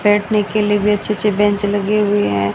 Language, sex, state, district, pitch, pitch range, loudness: Hindi, female, Haryana, Rohtak, 205 Hz, 205-210 Hz, -16 LUFS